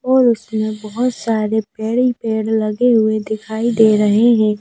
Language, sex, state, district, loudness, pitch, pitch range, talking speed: Hindi, female, Madhya Pradesh, Bhopal, -16 LUFS, 220 Hz, 215-235 Hz, 145 wpm